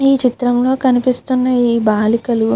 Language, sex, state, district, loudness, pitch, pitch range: Telugu, female, Andhra Pradesh, Guntur, -15 LUFS, 245 Hz, 235-255 Hz